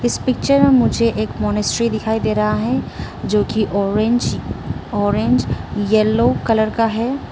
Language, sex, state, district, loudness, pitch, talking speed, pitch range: Hindi, female, Arunachal Pradesh, Lower Dibang Valley, -17 LUFS, 215 Hz, 140 wpm, 200-235 Hz